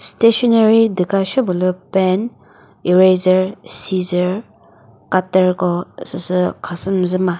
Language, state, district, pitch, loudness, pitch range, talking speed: Chakhesang, Nagaland, Dimapur, 185 Hz, -16 LUFS, 180-195 Hz, 105 wpm